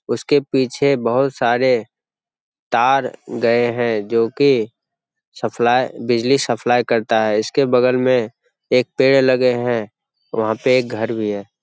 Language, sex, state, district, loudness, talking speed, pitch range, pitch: Hindi, male, Bihar, Jamui, -17 LUFS, 140 wpm, 115-130 Hz, 120 Hz